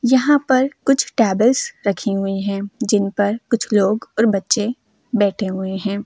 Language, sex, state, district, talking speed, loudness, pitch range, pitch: Hindi, female, Delhi, New Delhi, 160 wpm, -18 LUFS, 200-250 Hz, 210 Hz